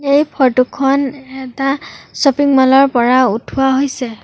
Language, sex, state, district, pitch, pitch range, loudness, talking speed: Assamese, female, Assam, Sonitpur, 270 Hz, 255-275 Hz, -14 LUFS, 140 wpm